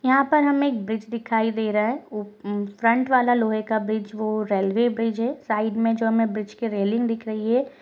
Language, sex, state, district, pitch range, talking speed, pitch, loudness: Hindi, female, Chhattisgarh, Rajnandgaon, 215-240 Hz, 215 wpm, 225 Hz, -23 LUFS